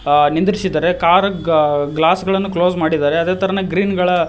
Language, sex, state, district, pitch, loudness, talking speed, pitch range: Kannada, male, Karnataka, Koppal, 175 Hz, -15 LUFS, 170 wpm, 160-190 Hz